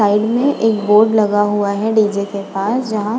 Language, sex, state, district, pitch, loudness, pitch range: Hindi, female, Uttar Pradesh, Budaun, 210 Hz, -15 LUFS, 205-225 Hz